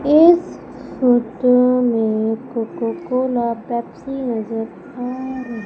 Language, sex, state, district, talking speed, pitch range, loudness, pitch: Hindi, female, Madhya Pradesh, Umaria, 85 wpm, 225-255 Hz, -18 LUFS, 245 Hz